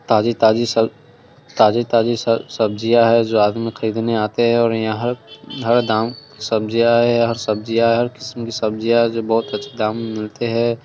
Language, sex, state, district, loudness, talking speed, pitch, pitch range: Hindi, male, Bihar, Sitamarhi, -18 LUFS, 175 wpm, 115 Hz, 110-120 Hz